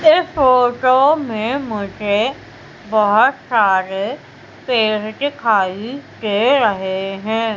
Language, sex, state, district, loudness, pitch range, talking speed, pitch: Hindi, female, Madhya Pradesh, Umaria, -16 LUFS, 205-260 Hz, 85 wpm, 220 Hz